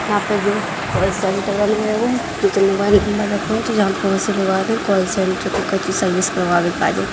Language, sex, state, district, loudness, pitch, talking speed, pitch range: Hindi, female, Bihar, Darbhanga, -18 LUFS, 200 Hz, 100 wpm, 190-210 Hz